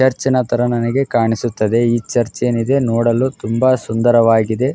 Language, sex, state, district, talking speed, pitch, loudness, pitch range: Kannada, male, Karnataka, Raichur, 140 wpm, 120 Hz, -16 LUFS, 115-130 Hz